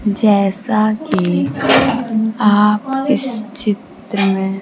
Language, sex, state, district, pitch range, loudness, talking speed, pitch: Hindi, female, Bihar, Kaimur, 200-230 Hz, -16 LUFS, 80 wpm, 215 Hz